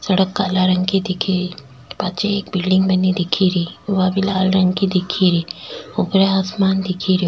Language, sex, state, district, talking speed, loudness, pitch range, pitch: Rajasthani, female, Rajasthan, Nagaur, 190 wpm, -18 LUFS, 180-190 Hz, 185 Hz